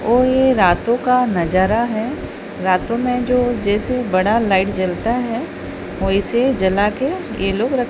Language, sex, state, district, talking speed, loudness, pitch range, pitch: Hindi, female, Odisha, Sambalpur, 150 wpm, -17 LUFS, 195-250 Hz, 230 Hz